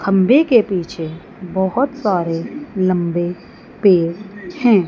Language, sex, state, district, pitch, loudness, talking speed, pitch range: Hindi, female, Chandigarh, Chandigarh, 190 Hz, -17 LUFS, 100 wpm, 175-230 Hz